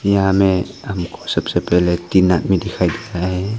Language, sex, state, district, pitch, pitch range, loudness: Hindi, male, Arunachal Pradesh, Longding, 95 Hz, 90-100 Hz, -18 LUFS